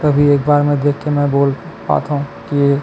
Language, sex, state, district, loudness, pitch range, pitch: Chhattisgarhi, male, Chhattisgarh, Kabirdham, -15 LUFS, 140-145 Hz, 145 Hz